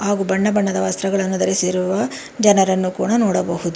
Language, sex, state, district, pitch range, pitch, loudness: Kannada, female, Karnataka, Bangalore, 185-205 Hz, 195 Hz, -18 LUFS